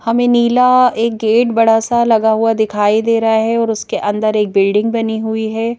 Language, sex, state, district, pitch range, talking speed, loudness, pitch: Hindi, female, Madhya Pradesh, Bhopal, 220-230 Hz, 205 wpm, -13 LUFS, 225 Hz